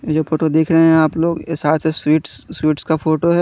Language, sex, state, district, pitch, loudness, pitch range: Hindi, male, Chandigarh, Chandigarh, 160 Hz, -16 LUFS, 155-165 Hz